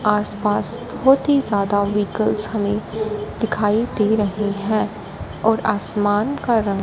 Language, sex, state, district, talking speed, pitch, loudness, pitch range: Hindi, female, Punjab, Fazilka, 130 wpm, 210 Hz, -19 LUFS, 205-225 Hz